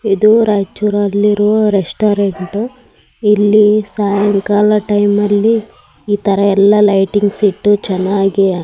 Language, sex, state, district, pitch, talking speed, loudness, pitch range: Kannada, male, Karnataka, Raichur, 205 Hz, 95 wpm, -12 LUFS, 200-210 Hz